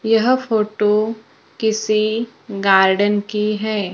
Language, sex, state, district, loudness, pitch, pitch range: Hindi, female, Maharashtra, Gondia, -18 LUFS, 215 Hz, 205-220 Hz